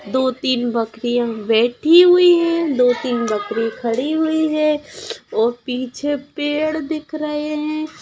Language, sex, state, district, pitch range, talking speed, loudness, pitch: Hindi, female, Bihar, Sitamarhi, 240-310 Hz, 120 wpm, -18 LUFS, 290 Hz